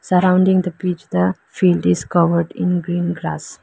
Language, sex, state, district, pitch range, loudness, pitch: English, female, Arunachal Pradesh, Lower Dibang Valley, 170-180 Hz, -18 LUFS, 175 Hz